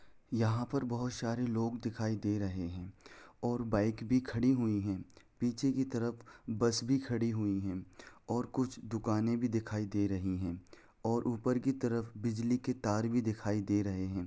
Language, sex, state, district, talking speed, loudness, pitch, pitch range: Hindi, male, Jharkhand, Sahebganj, 180 wpm, -35 LUFS, 115 Hz, 105-120 Hz